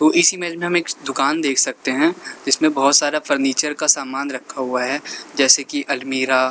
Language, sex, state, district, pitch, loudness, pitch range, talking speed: Hindi, male, Uttar Pradesh, Lalitpur, 145 Hz, -18 LUFS, 135-155 Hz, 200 wpm